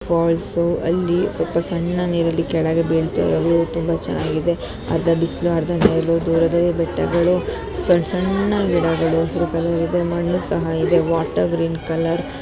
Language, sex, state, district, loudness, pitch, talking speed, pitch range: Kannada, female, Karnataka, Chamarajanagar, -19 LUFS, 170 Hz, 140 wpm, 165-175 Hz